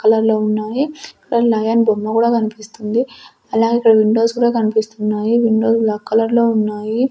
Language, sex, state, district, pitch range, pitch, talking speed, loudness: Telugu, female, Andhra Pradesh, Sri Satya Sai, 215-235 Hz, 225 Hz, 150 wpm, -16 LUFS